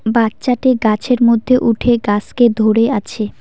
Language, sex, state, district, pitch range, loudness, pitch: Bengali, female, West Bengal, Cooch Behar, 220-250 Hz, -14 LUFS, 230 Hz